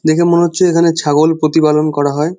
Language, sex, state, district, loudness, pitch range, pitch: Bengali, male, West Bengal, Jhargram, -12 LUFS, 150-170 Hz, 160 Hz